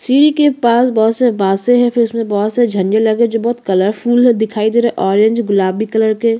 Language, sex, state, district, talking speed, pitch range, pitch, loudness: Hindi, female, Chhattisgarh, Kabirdham, 225 wpm, 215-240 Hz, 230 Hz, -13 LUFS